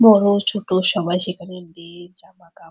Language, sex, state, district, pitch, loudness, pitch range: Bengali, female, West Bengal, Purulia, 180 Hz, -18 LUFS, 175-200 Hz